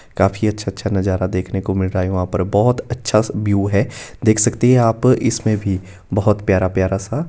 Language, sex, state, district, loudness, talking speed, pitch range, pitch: Hindi, male, Himachal Pradesh, Shimla, -18 LUFS, 220 wpm, 95-115 Hz, 100 Hz